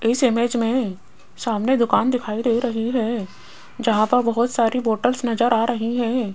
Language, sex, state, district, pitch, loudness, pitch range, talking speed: Hindi, female, Rajasthan, Jaipur, 235 Hz, -21 LUFS, 225-245 Hz, 170 wpm